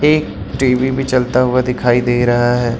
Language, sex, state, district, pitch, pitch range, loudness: Hindi, male, Uttar Pradesh, Lucknow, 125 Hz, 120-130 Hz, -15 LUFS